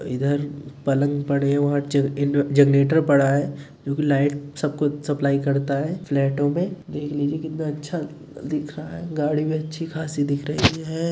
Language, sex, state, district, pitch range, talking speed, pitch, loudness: Hindi, male, Uttar Pradesh, Muzaffarnagar, 140-155 Hz, 165 wpm, 145 Hz, -22 LUFS